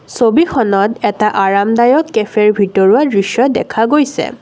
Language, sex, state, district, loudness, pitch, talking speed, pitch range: Assamese, female, Assam, Kamrup Metropolitan, -12 LUFS, 220 Hz, 110 wpm, 200-255 Hz